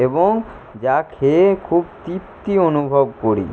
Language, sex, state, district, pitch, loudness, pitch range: Bengali, male, West Bengal, Jalpaiguri, 170 Hz, -17 LUFS, 140-185 Hz